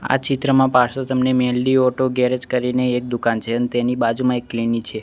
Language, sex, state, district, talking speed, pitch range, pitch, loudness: Gujarati, male, Gujarat, Gandhinagar, 205 wpm, 120-130 Hz, 125 Hz, -19 LUFS